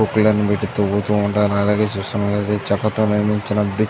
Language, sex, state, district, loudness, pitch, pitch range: Telugu, male, Andhra Pradesh, Chittoor, -18 LUFS, 105 Hz, 100-105 Hz